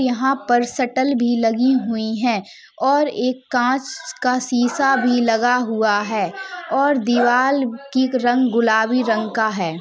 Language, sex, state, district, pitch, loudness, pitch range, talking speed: Hindi, female, Uttar Pradesh, Jalaun, 250 Hz, -18 LUFS, 235-265 Hz, 145 wpm